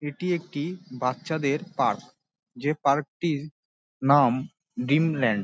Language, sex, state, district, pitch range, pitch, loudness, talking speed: Bengali, male, West Bengal, Dakshin Dinajpur, 140-165 Hz, 145 Hz, -26 LUFS, 120 wpm